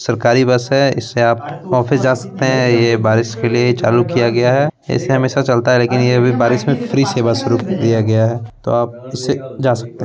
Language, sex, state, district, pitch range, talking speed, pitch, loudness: Hindi, male, Bihar, Begusarai, 120-130 Hz, 225 wpm, 120 Hz, -15 LUFS